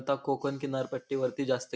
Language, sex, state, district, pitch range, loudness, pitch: Marathi, male, Maharashtra, Pune, 130-140 Hz, -32 LUFS, 135 Hz